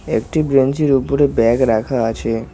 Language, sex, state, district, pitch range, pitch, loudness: Bengali, male, West Bengal, Cooch Behar, 115-140 Hz, 130 Hz, -16 LUFS